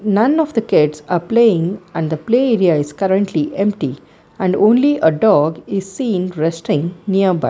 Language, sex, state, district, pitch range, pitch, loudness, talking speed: English, female, Karnataka, Bangalore, 160-215 Hz, 190 Hz, -16 LUFS, 170 wpm